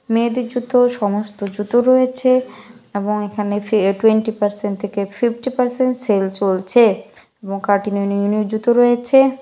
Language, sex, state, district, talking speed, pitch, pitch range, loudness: Bengali, female, West Bengal, Malda, 155 wpm, 215 Hz, 205-245 Hz, -17 LUFS